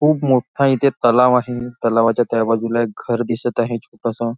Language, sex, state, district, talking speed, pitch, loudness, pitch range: Marathi, male, Maharashtra, Nagpur, 180 wpm, 120 Hz, -18 LUFS, 115-125 Hz